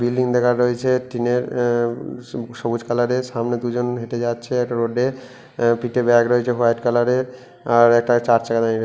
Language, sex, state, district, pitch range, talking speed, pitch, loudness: Bengali, male, West Bengal, Purulia, 120-125 Hz, 170 wpm, 120 Hz, -19 LUFS